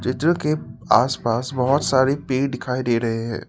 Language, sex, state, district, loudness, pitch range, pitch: Hindi, male, Assam, Sonitpur, -21 LUFS, 120-140 Hz, 130 Hz